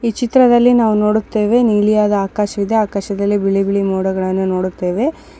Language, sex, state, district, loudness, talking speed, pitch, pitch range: Kannada, female, Karnataka, Dakshina Kannada, -15 LUFS, 135 wpm, 210 Hz, 195-220 Hz